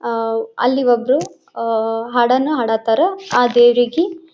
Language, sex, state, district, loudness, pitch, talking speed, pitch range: Kannada, female, Karnataka, Belgaum, -16 LUFS, 245 Hz, 110 wpm, 230-270 Hz